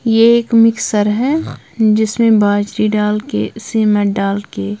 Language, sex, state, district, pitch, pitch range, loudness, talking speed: Hindi, female, Punjab, Kapurthala, 215 Hz, 205-225 Hz, -14 LUFS, 135 wpm